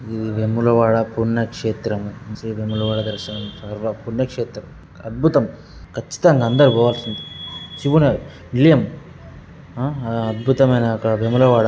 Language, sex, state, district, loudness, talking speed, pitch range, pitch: Telugu, male, Telangana, Karimnagar, -19 LUFS, 80 wpm, 110-125 Hz, 115 Hz